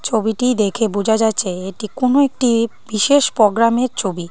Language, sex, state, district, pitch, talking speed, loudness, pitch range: Bengali, female, Tripura, Dhalai, 225 Hz, 140 wpm, -16 LUFS, 210-245 Hz